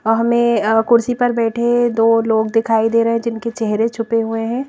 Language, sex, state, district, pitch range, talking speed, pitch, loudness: Hindi, female, Madhya Pradesh, Bhopal, 225-235 Hz, 190 wpm, 230 Hz, -16 LUFS